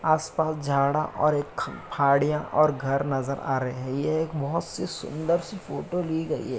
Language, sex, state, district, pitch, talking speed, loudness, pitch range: Hindi, male, Uttar Pradesh, Muzaffarnagar, 150 Hz, 190 wpm, -26 LUFS, 140-160 Hz